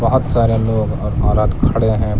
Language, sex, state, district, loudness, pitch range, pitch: Hindi, male, Jharkhand, Palamu, -16 LUFS, 105-115 Hz, 110 Hz